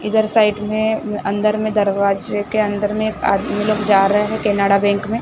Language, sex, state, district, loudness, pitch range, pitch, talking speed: Hindi, male, Maharashtra, Gondia, -17 LUFS, 200-215 Hz, 210 Hz, 205 wpm